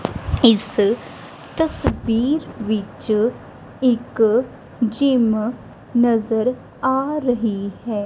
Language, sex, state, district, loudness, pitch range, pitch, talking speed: Punjabi, female, Punjab, Kapurthala, -20 LUFS, 220-250 Hz, 230 Hz, 65 wpm